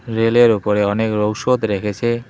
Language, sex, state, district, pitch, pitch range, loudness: Bengali, male, West Bengal, Cooch Behar, 110 Hz, 105-120 Hz, -17 LUFS